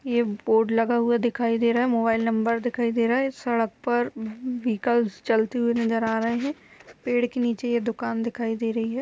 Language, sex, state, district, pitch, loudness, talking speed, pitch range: Hindi, female, Uttar Pradesh, Budaun, 235 Hz, -24 LUFS, 215 wpm, 230-240 Hz